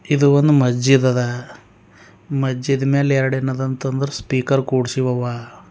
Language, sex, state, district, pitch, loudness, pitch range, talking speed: Kannada, male, Karnataka, Bidar, 130 Hz, -18 LUFS, 125-135 Hz, 95 wpm